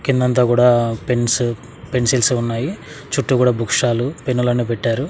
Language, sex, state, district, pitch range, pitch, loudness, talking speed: Telugu, male, Andhra Pradesh, Sri Satya Sai, 120-130 Hz, 125 Hz, -17 LUFS, 140 wpm